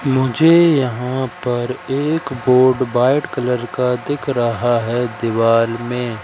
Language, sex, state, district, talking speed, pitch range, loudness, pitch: Hindi, male, Madhya Pradesh, Katni, 125 wpm, 120-135 Hz, -17 LUFS, 125 Hz